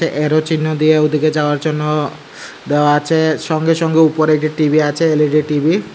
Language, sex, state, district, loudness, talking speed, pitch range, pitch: Bengali, male, Tripura, Unakoti, -14 LUFS, 170 wpm, 150-160 Hz, 155 Hz